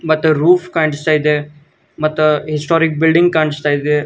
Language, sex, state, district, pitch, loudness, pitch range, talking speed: Kannada, male, Karnataka, Gulbarga, 155 Hz, -14 LUFS, 150-160 Hz, 135 wpm